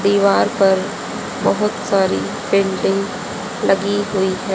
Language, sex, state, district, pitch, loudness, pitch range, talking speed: Hindi, female, Haryana, Rohtak, 195 Hz, -18 LUFS, 195-205 Hz, 105 wpm